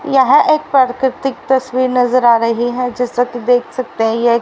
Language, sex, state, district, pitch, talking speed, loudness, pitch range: Hindi, female, Haryana, Rohtak, 250 Hz, 205 wpm, -14 LUFS, 240-260 Hz